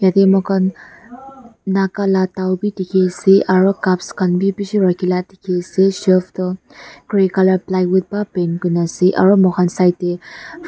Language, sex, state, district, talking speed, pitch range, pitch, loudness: Nagamese, female, Nagaland, Dimapur, 170 wpm, 180-195 Hz, 190 Hz, -16 LUFS